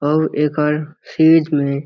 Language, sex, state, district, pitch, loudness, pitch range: Chhattisgarhi, male, Chhattisgarh, Jashpur, 150 Hz, -16 LUFS, 150-155 Hz